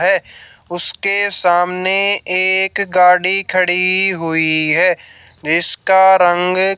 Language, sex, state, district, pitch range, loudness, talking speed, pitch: Hindi, male, Haryana, Jhajjar, 175-190 Hz, -11 LUFS, 90 wpm, 185 Hz